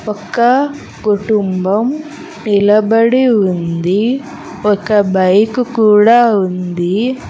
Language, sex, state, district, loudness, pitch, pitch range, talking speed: Telugu, female, Andhra Pradesh, Sri Satya Sai, -13 LUFS, 210 Hz, 195-240 Hz, 65 wpm